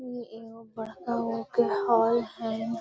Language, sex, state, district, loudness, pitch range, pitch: Magahi, female, Bihar, Gaya, -28 LUFS, 225-235 Hz, 230 Hz